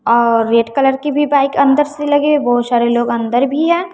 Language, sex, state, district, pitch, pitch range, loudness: Hindi, female, Bihar, West Champaran, 270 Hz, 235-290 Hz, -14 LUFS